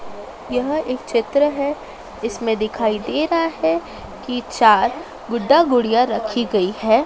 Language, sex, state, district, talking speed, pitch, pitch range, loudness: Hindi, female, Madhya Pradesh, Dhar, 135 wpm, 240 Hz, 220-280 Hz, -19 LUFS